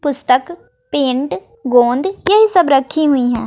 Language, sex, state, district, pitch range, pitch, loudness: Hindi, female, Bihar, West Champaran, 255-345 Hz, 280 Hz, -14 LUFS